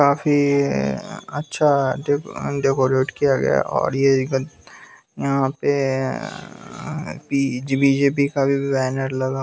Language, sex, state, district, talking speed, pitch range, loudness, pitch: Hindi, male, Bihar, West Champaran, 115 wpm, 130-140 Hz, -20 LUFS, 135 Hz